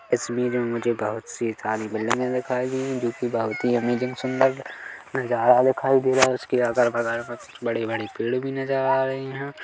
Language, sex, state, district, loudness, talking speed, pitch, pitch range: Hindi, male, Chhattisgarh, Kabirdham, -24 LUFS, 205 wpm, 125 Hz, 120-130 Hz